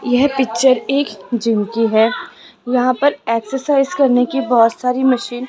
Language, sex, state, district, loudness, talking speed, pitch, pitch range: Hindi, female, Rajasthan, Jaipur, -16 LUFS, 165 wpm, 250 Hz, 230-270 Hz